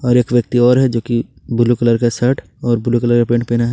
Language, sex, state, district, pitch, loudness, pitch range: Hindi, male, Jharkhand, Ranchi, 120 Hz, -15 LUFS, 120-125 Hz